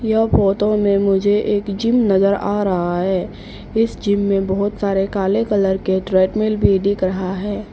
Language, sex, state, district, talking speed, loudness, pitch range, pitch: Hindi, female, Arunachal Pradesh, Papum Pare, 180 wpm, -17 LUFS, 190-210 Hz, 200 Hz